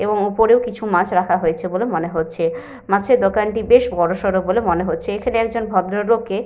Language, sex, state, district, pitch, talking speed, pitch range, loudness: Bengali, female, Jharkhand, Sahebganj, 205 Hz, 185 wpm, 180-230 Hz, -18 LUFS